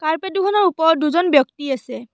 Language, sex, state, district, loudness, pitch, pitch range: Assamese, female, Assam, Kamrup Metropolitan, -18 LUFS, 315 Hz, 270-350 Hz